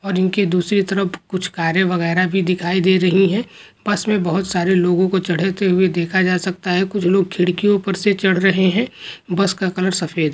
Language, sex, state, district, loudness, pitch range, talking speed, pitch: Hindi, male, West Bengal, Jhargram, -17 LUFS, 180-195 Hz, 215 wpm, 185 Hz